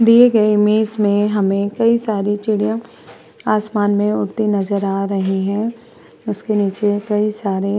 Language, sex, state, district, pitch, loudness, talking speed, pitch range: Hindi, female, Uttar Pradesh, Hamirpur, 210 Hz, -17 LUFS, 145 wpm, 200-220 Hz